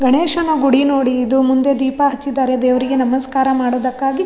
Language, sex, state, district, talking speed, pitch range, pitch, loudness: Kannada, female, Karnataka, Raichur, 140 wpm, 255-275 Hz, 265 Hz, -15 LUFS